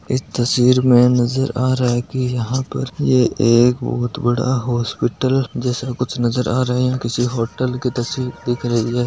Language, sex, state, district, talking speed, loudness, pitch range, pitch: Marwari, male, Rajasthan, Nagaur, 190 wpm, -18 LUFS, 120-130 Hz, 125 Hz